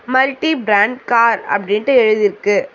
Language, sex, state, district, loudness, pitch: Tamil, female, Tamil Nadu, Chennai, -15 LUFS, 260 Hz